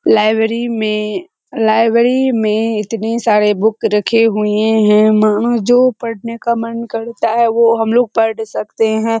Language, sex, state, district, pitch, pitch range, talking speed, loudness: Hindi, female, Bihar, Kishanganj, 225 Hz, 215-235 Hz, 145 wpm, -14 LUFS